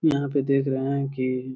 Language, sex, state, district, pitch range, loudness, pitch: Hindi, male, Bihar, Jamui, 130-140 Hz, -25 LUFS, 135 Hz